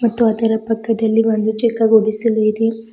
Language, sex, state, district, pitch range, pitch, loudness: Kannada, female, Karnataka, Bidar, 220-225 Hz, 225 Hz, -16 LUFS